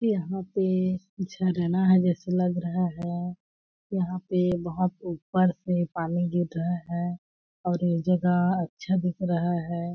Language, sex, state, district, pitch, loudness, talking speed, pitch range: Hindi, female, Chhattisgarh, Balrampur, 180 Hz, -27 LUFS, 145 wpm, 175-185 Hz